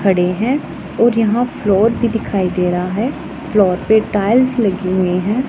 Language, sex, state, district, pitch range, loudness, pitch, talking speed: Hindi, female, Punjab, Pathankot, 185-235 Hz, -16 LUFS, 215 Hz, 175 wpm